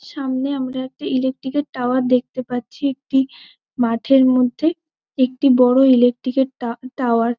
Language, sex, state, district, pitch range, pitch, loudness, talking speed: Bengali, female, West Bengal, Malda, 250-270 Hz, 260 Hz, -18 LUFS, 120 wpm